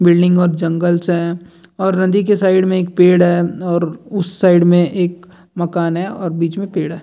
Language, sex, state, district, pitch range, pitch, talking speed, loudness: Hindi, male, Bihar, Jamui, 175-185 Hz, 175 Hz, 205 wpm, -15 LUFS